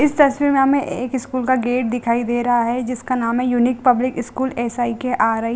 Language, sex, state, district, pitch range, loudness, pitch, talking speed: Hindi, female, Bihar, Gaya, 240-260 Hz, -19 LUFS, 250 Hz, 260 wpm